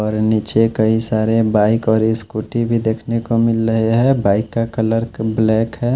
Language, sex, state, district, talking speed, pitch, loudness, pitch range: Hindi, male, Chhattisgarh, Raipur, 190 wpm, 110 Hz, -16 LUFS, 110-115 Hz